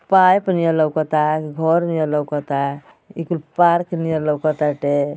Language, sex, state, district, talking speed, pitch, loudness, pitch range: Bhojpuri, male, Uttar Pradesh, Ghazipur, 115 wpm, 155 Hz, -18 LUFS, 150-170 Hz